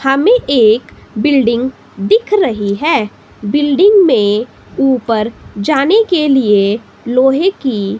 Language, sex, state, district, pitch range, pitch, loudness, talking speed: Hindi, female, Himachal Pradesh, Shimla, 215-295 Hz, 260 Hz, -12 LUFS, 105 wpm